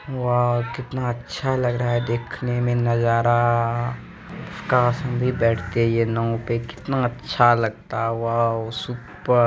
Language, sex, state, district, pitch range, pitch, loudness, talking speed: Hindi, male, Bihar, East Champaran, 115-125 Hz, 120 Hz, -22 LUFS, 135 wpm